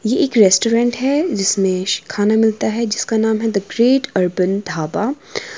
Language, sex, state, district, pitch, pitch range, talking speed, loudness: Hindi, female, Himachal Pradesh, Shimla, 220 Hz, 195-240 Hz, 160 wpm, -16 LUFS